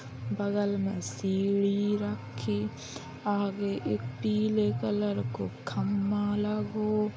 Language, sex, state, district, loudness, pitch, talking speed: Bundeli, female, Uttar Pradesh, Hamirpur, -30 LUFS, 135 Hz, 100 wpm